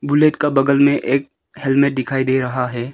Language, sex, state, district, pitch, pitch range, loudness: Hindi, male, Arunachal Pradesh, Lower Dibang Valley, 135 Hz, 130-140 Hz, -17 LUFS